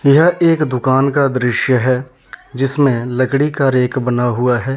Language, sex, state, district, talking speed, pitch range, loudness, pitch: Hindi, male, Jharkhand, Deoghar, 165 wpm, 125-140 Hz, -15 LUFS, 130 Hz